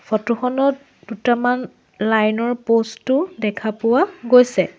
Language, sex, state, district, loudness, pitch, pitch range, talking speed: Assamese, female, Assam, Sonitpur, -18 LUFS, 235 Hz, 220-250 Hz, 125 wpm